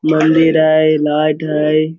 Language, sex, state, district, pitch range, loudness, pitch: Hindi, male, Jharkhand, Sahebganj, 155-160 Hz, -13 LUFS, 155 Hz